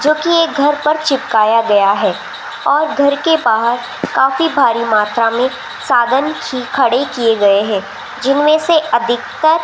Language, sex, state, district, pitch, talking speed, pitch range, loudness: Hindi, female, Rajasthan, Jaipur, 260 Hz, 155 wpm, 230-305 Hz, -13 LUFS